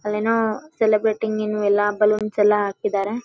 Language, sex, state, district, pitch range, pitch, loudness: Kannada, female, Karnataka, Dharwad, 210-220 Hz, 210 Hz, -20 LUFS